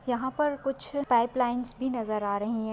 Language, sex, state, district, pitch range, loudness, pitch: Hindi, female, Maharashtra, Solapur, 230-265 Hz, -29 LUFS, 245 Hz